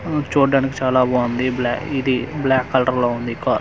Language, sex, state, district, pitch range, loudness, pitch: Telugu, male, Andhra Pradesh, Manyam, 125-135 Hz, -19 LUFS, 130 Hz